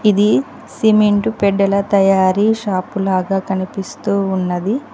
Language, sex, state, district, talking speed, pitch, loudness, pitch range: Telugu, female, Telangana, Mahabubabad, 95 wpm, 200 Hz, -16 LUFS, 190-210 Hz